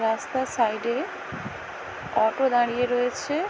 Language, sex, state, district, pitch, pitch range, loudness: Bengali, female, West Bengal, Paschim Medinipur, 245 Hz, 235-265 Hz, -26 LUFS